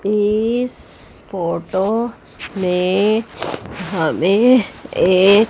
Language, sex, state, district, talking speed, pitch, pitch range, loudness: Hindi, female, Chandigarh, Chandigarh, 55 wpm, 210 Hz, 190-225 Hz, -17 LUFS